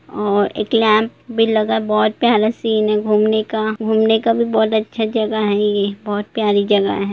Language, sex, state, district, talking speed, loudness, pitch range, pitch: Hindi, female, Bihar, Gopalganj, 200 wpm, -17 LUFS, 205-220 Hz, 215 Hz